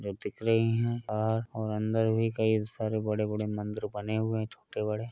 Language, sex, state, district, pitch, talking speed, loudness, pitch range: Hindi, male, Uttar Pradesh, Varanasi, 110 Hz, 200 wpm, -31 LUFS, 105-115 Hz